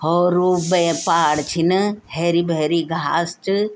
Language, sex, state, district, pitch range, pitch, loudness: Garhwali, female, Uttarakhand, Tehri Garhwal, 165-180 Hz, 170 Hz, -19 LUFS